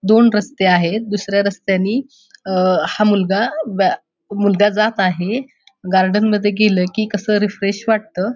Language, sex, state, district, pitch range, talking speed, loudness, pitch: Marathi, female, Maharashtra, Pune, 190-215 Hz, 130 wpm, -16 LUFS, 205 Hz